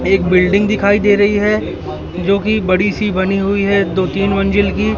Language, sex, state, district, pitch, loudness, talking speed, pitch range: Hindi, male, Madhya Pradesh, Katni, 200 Hz, -14 LUFS, 205 wpm, 195-205 Hz